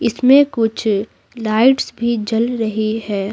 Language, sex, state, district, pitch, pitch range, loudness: Hindi, female, Bihar, Patna, 225 Hz, 215-240 Hz, -16 LUFS